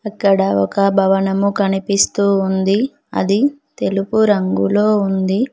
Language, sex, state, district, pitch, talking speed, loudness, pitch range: Telugu, female, Telangana, Mahabubabad, 200 Hz, 95 wpm, -16 LUFS, 195-210 Hz